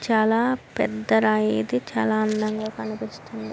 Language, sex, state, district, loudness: Telugu, female, Andhra Pradesh, Srikakulam, -23 LUFS